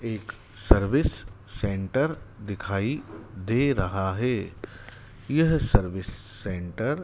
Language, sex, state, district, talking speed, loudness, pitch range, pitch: Hindi, male, Madhya Pradesh, Dhar, 95 wpm, -27 LUFS, 100-120 Hz, 105 Hz